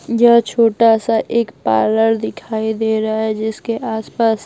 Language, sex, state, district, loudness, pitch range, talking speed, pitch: Hindi, female, Bihar, Patna, -16 LUFS, 220-230 Hz, 150 wpm, 220 Hz